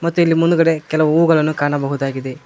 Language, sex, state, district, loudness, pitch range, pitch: Kannada, male, Karnataka, Koppal, -16 LUFS, 145-165 Hz, 155 Hz